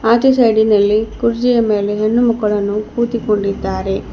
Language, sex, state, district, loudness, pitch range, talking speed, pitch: Kannada, female, Karnataka, Bidar, -15 LUFS, 205-235 Hz, 100 wpm, 215 Hz